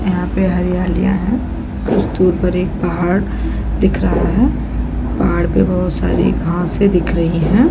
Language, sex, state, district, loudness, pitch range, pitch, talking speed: Hindi, female, Chhattisgarh, Balrampur, -16 LUFS, 175-190 Hz, 180 Hz, 165 wpm